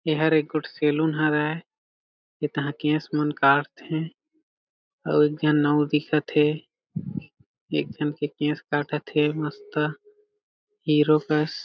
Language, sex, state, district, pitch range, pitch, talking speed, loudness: Chhattisgarhi, male, Chhattisgarh, Jashpur, 150-160 Hz, 150 Hz, 125 wpm, -24 LUFS